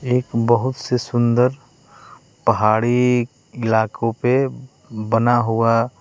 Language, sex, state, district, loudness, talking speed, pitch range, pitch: Hindi, male, Bihar, West Champaran, -18 LUFS, 90 wpm, 115-125 Hz, 120 Hz